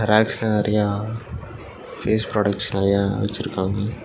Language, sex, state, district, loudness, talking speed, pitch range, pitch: Tamil, male, Tamil Nadu, Nilgiris, -22 LUFS, 90 wpm, 100-110 Hz, 105 Hz